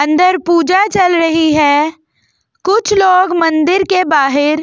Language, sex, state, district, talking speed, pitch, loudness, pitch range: Hindi, female, Delhi, New Delhi, 140 wpm, 345 Hz, -11 LUFS, 310-370 Hz